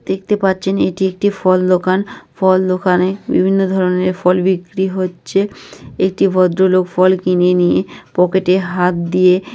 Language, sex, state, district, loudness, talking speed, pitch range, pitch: Bengali, female, West Bengal, North 24 Parganas, -15 LUFS, 130 wpm, 180-190 Hz, 185 Hz